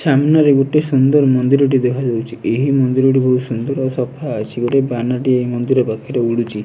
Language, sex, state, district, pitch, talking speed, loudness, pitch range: Odia, male, Odisha, Nuapada, 130 Hz, 200 wpm, -15 LUFS, 120-135 Hz